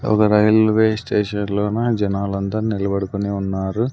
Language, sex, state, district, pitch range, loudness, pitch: Telugu, male, Andhra Pradesh, Sri Satya Sai, 100-110 Hz, -19 LUFS, 105 Hz